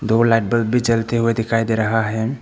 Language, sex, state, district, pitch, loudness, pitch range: Hindi, male, Arunachal Pradesh, Papum Pare, 115 Hz, -18 LUFS, 110-115 Hz